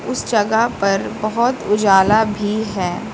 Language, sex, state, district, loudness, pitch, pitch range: Hindi, female, Uttar Pradesh, Lucknow, -17 LUFS, 215 Hz, 200-220 Hz